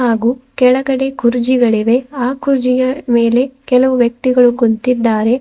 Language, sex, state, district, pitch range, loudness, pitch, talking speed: Kannada, female, Karnataka, Bidar, 240-260 Hz, -13 LUFS, 250 Hz, 100 wpm